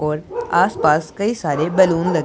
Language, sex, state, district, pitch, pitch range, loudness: Hindi, male, Punjab, Pathankot, 165 Hz, 150-190 Hz, -18 LUFS